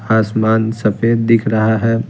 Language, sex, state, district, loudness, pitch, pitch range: Hindi, male, Bihar, Patna, -15 LUFS, 110 Hz, 110-115 Hz